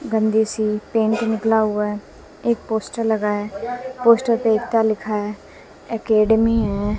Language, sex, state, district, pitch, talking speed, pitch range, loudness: Hindi, female, Haryana, Jhajjar, 220 Hz, 145 wpm, 210-230 Hz, -20 LUFS